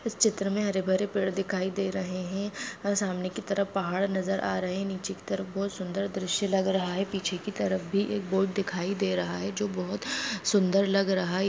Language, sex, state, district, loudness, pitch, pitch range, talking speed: Hindi, female, Goa, North and South Goa, -29 LUFS, 195 Hz, 185-200 Hz, 230 wpm